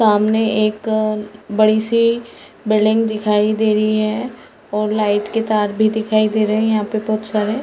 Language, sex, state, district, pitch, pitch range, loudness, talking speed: Hindi, female, Uttar Pradesh, Varanasi, 215 Hz, 215-220 Hz, -17 LUFS, 175 wpm